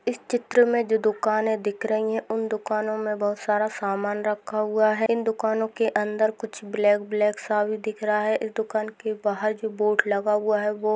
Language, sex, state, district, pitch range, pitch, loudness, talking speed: Hindi, female, Maharashtra, Dhule, 210-220 Hz, 215 Hz, -24 LUFS, 215 wpm